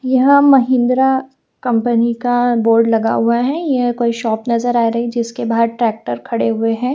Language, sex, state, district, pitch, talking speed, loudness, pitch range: Hindi, female, Haryana, Jhajjar, 235 Hz, 180 wpm, -15 LUFS, 230-255 Hz